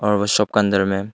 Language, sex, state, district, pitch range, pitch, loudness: Hindi, male, Arunachal Pradesh, Longding, 100-105 Hz, 105 Hz, -18 LUFS